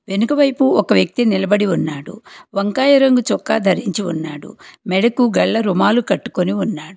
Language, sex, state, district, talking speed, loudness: Telugu, female, Telangana, Hyderabad, 140 wpm, -16 LUFS